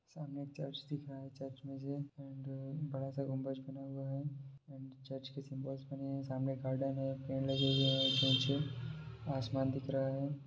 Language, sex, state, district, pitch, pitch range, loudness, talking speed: Hindi, male, Bihar, Madhepura, 135 Hz, 135-140 Hz, -39 LUFS, 195 wpm